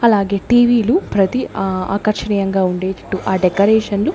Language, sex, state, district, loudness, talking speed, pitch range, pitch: Telugu, female, Andhra Pradesh, Sri Satya Sai, -16 LUFS, 160 wpm, 190-220 Hz, 200 Hz